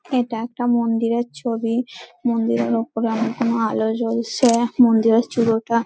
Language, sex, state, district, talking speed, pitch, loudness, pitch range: Bengali, female, West Bengal, Dakshin Dinajpur, 125 wpm, 230 Hz, -20 LUFS, 225-240 Hz